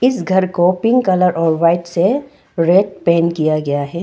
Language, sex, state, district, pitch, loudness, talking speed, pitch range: Hindi, female, Arunachal Pradesh, Longding, 175 Hz, -15 LUFS, 195 wpm, 165-190 Hz